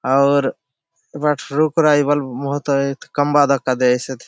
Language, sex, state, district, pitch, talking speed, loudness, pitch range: Halbi, male, Chhattisgarh, Bastar, 140 Hz, 140 wpm, -17 LUFS, 130-145 Hz